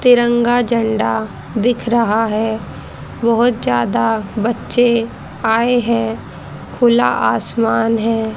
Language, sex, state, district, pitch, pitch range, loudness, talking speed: Hindi, female, Haryana, Charkhi Dadri, 225 Hz, 215-240 Hz, -16 LUFS, 95 wpm